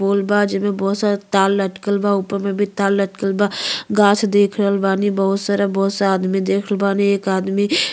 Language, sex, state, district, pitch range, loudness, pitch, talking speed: Bhojpuri, female, Uttar Pradesh, Ghazipur, 195-205 Hz, -18 LUFS, 200 Hz, 220 wpm